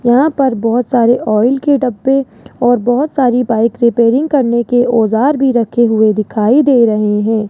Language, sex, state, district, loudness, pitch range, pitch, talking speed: Hindi, male, Rajasthan, Jaipur, -12 LUFS, 225-265 Hz, 240 Hz, 175 wpm